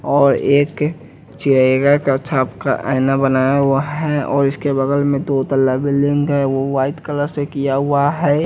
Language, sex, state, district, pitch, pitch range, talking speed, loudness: Hindi, male, Bihar, West Champaran, 140 Hz, 135-145 Hz, 175 wpm, -16 LUFS